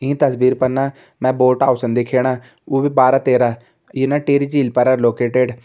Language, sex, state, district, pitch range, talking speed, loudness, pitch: Hindi, male, Uttarakhand, Tehri Garhwal, 125-135 Hz, 200 wpm, -16 LUFS, 130 Hz